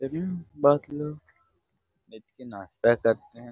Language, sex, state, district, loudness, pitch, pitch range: Hindi, male, Bihar, Darbhanga, -26 LUFS, 135 Hz, 115-150 Hz